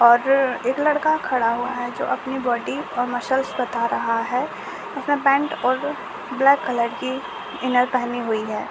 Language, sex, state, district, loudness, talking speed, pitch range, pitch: Hindi, female, Bihar, Jahanabad, -22 LUFS, 160 wpm, 240-275 Hz, 255 Hz